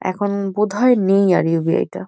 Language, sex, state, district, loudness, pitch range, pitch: Bengali, female, West Bengal, Kolkata, -17 LUFS, 165-205 Hz, 195 Hz